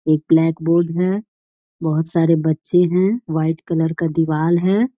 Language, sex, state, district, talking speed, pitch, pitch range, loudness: Hindi, female, Bihar, Jahanabad, 155 wpm, 165 Hz, 160-180 Hz, -18 LUFS